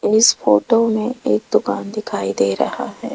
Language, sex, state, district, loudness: Hindi, female, Rajasthan, Jaipur, -18 LUFS